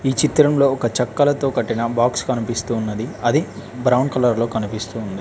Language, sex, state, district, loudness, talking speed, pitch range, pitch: Telugu, male, Telangana, Mahabubabad, -19 LUFS, 160 wpm, 115-135 Hz, 120 Hz